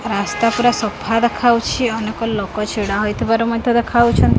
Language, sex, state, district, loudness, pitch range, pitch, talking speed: Odia, female, Odisha, Khordha, -17 LUFS, 210-235 Hz, 225 Hz, 135 wpm